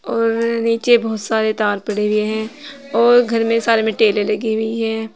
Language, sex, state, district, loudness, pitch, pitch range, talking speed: Hindi, female, Uttar Pradesh, Saharanpur, -17 LUFS, 225 Hz, 220-230 Hz, 195 wpm